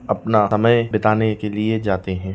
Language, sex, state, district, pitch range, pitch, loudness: Hindi, male, Jharkhand, Sahebganj, 105-110 Hz, 105 Hz, -18 LUFS